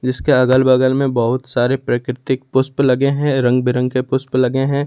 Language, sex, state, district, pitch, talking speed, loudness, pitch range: Hindi, male, Jharkhand, Ranchi, 130 Hz, 185 wpm, -16 LUFS, 125-135 Hz